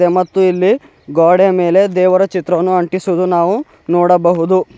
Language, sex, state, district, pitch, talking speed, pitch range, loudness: Kannada, female, Karnataka, Bidar, 185 Hz, 115 wpm, 175-185 Hz, -13 LUFS